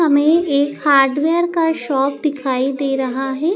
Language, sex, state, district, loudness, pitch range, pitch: Hindi, male, Madhya Pradesh, Dhar, -17 LUFS, 270-320 Hz, 285 Hz